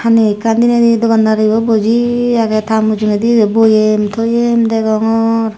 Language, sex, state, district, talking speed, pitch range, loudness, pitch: Chakma, female, Tripura, Dhalai, 130 wpm, 215-230 Hz, -12 LUFS, 225 Hz